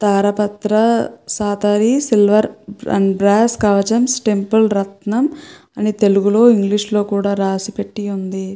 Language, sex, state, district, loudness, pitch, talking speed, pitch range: Telugu, female, Andhra Pradesh, Chittoor, -16 LUFS, 210 Hz, 120 wpm, 200-220 Hz